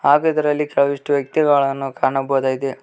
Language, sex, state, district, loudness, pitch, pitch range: Kannada, male, Karnataka, Koppal, -18 LUFS, 140 Hz, 135-150 Hz